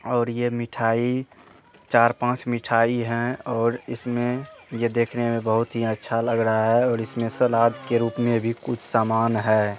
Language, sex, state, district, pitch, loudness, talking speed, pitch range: Hindi, male, Bihar, Madhepura, 115 Hz, -23 LUFS, 165 wpm, 115-120 Hz